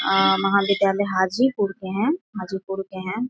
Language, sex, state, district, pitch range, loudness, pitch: Hindi, female, Bihar, Sitamarhi, 190-200 Hz, -22 LUFS, 195 Hz